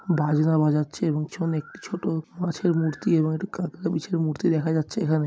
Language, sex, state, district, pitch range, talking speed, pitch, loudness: Bengali, male, West Bengal, Jhargram, 155-175 Hz, 180 wpm, 160 Hz, -25 LUFS